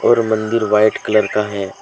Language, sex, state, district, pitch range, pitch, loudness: Hindi, male, Jharkhand, Deoghar, 105-110 Hz, 110 Hz, -16 LUFS